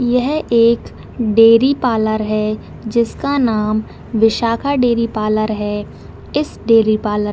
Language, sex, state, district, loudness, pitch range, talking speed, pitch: Hindi, female, Chhattisgarh, Raigarh, -16 LUFS, 215-240 Hz, 125 wpm, 225 Hz